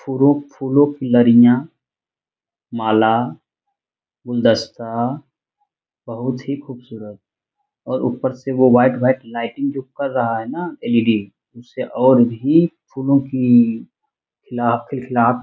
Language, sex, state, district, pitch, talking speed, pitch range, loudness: Hindi, male, Bihar, Jamui, 130 Hz, 110 wpm, 115-140 Hz, -17 LUFS